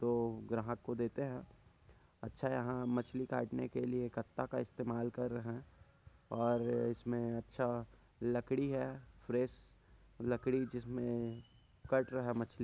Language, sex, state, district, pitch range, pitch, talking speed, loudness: Hindi, male, Chhattisgarh, Kabirdham, 115-125 Hz, 120 Hz, 135 wpm, -39 LUFS